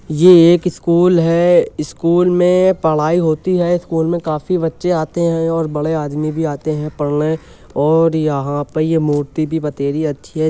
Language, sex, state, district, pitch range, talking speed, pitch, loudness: Hindi, male, Uttar Pradesh, Jyotiba Phule Nagar, 155-175 Hz, 175 wpm, 160 Hz, -15 LUFS